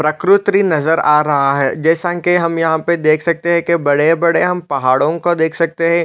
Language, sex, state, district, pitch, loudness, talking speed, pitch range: Hindi, male, Chhattisgarh, Raigarh, 165 Hz, -14 LUFS, 230 wpm, 155-170 Hz